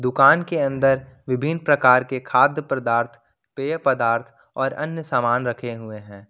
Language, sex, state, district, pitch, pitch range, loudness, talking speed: Hindi, male, Jharkhand, Ranchi, 130 Hz, 120-140 Hz, -21 LUFS, 150 wpm